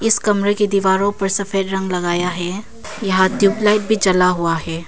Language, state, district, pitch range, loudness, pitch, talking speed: Hindi, Arunachal Pradesh, Papum Pare, 180-205 Hz, -17 LUFS, 195 Hz, 185 wpm